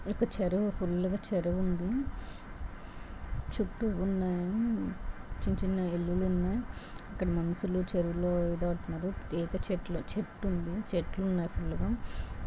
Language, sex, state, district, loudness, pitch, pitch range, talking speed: Telugu, female, Andhra Pradesh, Srikakulam, -34 LUFS, 180 Hz, 175-195 Hz, 115 wpm